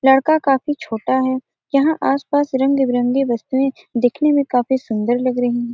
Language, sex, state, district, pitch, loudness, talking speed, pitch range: Hindi, female, Bihar, Gopalganj, 265 Hz, -18 LUFS, 155 wpm, 245-280 Hz